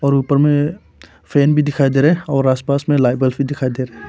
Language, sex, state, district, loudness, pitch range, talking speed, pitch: Hindi, male, Arunachal Pradesh, Papum Pare, -16 LUFS, 130-145 Hz, 235 wpm, 140 Hz